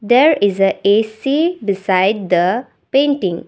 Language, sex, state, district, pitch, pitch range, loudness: English, female, Assam, Kamrup Metropolitan, 205 Hz, 195-270 Hz, -15 LUFS